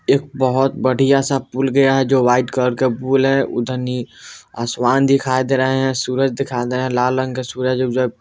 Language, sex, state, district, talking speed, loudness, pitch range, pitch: Bajjika, male, Bihar, Vaishali, 220 wpm, -17 LUFS, 125-135 Hz, 130 Hz